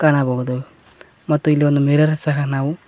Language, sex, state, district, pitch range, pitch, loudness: Kannada, male, Karnataka, Koppal, 135-150 Hz, 145 Hz, -18 LUFS